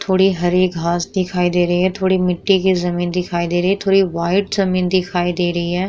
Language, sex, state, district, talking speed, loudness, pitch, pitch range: Hindi, female, Bihar, Vaishali, 225 wpm, -17 LUFS, 180 Hz, 175-190 Hz